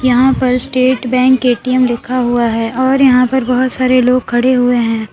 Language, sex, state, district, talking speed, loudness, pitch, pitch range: Hindi, female, Uttar Pradesh, Lalitpur, 200 wpm, -12 LUFS, 255 Hz, 245-255 Hz